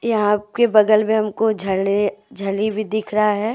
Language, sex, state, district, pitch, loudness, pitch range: Hindi, female, Jharkhand, Deoghar, 215 Hz, -19 LUFS, 205-220 Hz